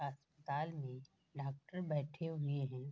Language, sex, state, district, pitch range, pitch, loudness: Hindi, female, Bihar, Bhagalpur, 140-155 Hz, 145 Hz, -43 LUFS